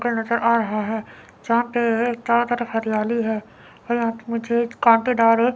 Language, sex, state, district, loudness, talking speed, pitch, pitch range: Hindi, female, Chandigarh, Chandigarh, -21 LUFS, 140 wpm, 235 Hz, 225-235 Hz